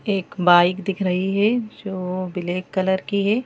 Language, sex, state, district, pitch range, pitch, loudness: Hindi, female, Madhya Pradesh, Bhopal, 180-200 Hz, 190 Hz, -21 LUFS